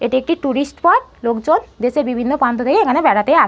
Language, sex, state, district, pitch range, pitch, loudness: Bengali, female, West Bengal, North 24 Parganas, 245-330 Hz, 270 Hz, -16 LUFS